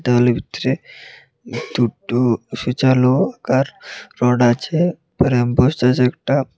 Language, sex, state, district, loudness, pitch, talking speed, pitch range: Bengali, male, Tripura, West Tripura, -18 LUFS, 125 Hz, 65 wpm, 120-135 Hz